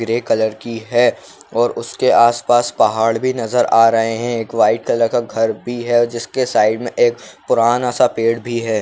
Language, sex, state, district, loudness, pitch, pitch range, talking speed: Kumaoni, male, Uttarakhand, Uttarkashi, -16 LUFS, 115 Hz, 115-120 Hz, 210 wpm